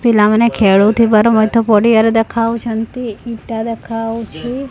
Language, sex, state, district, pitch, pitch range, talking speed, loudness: Odia, female, Odisha, Khordha, 225 Hz, 220-230 Hz, 100 wpm, -13 LUFS